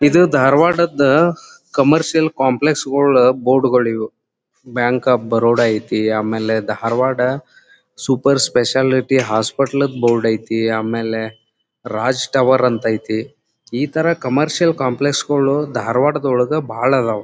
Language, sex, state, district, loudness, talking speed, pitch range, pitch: Kannada, male, Karnataka, Dharwad, -16 LUFS, 105 wpm, 115-140 Hz, 130 Hz